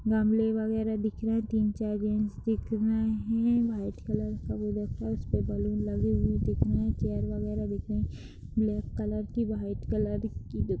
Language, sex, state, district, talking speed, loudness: Hindi, female, Uttar Pradesh, Deoria, 200 wpm, -30 LUFS